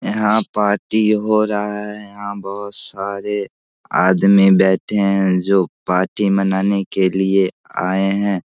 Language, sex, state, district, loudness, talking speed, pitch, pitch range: Hindi, male, Bihar, Samastipur, -17 LUFS, 130 wpm, 100 Hz, 95-105 Hz